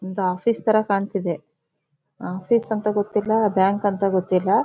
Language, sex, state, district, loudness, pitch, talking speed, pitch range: Kannada, female, Karnataka, Shimoga, -22 LUFS, 195 Hz, 130 wpm, 180-210 Hz